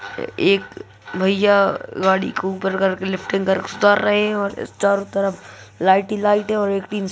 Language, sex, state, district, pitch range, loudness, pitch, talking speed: Hindi, female, Bihar, Purnia, 190-210 Hz, -19 LUFS, 200 Hz, 175 wpm